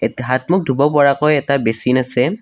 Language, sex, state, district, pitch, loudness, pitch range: Assamese, male, Assam, Kamrup Metropolitan, 140 Hz, -15 LUFS, 125-150 Hz